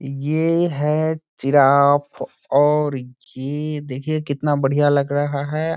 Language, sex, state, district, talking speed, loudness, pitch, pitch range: Hindi, male, Bihar, Saran, 115 wpm, -19 LUFS, 145 Hz, 140-155 Hz